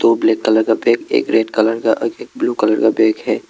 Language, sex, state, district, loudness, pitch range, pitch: Hindi, male, Assam, Kamrup Metropolitan, -16 LUFS, 110-115 Hz, 110 Hz